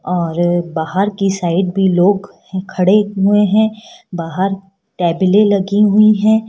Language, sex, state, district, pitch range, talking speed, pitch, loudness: Hindi, female, Rajasthan, Jaipur, 180-205 Hz, 130 wpm, 195 Hz, -14 LUFS